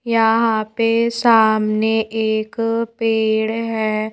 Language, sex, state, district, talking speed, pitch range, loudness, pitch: Hindi, female, Madhya Pradesh, Bhopal, 85 wpm, 220-230 Hz, -17 LUFS, 225 Hz